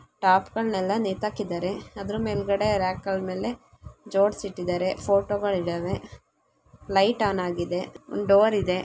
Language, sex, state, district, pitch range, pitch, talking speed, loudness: Kannada, female, Karnataka, Chamarajanagar, 185-205 Hz, 195 Hz, 135 wpm, -25 LUFS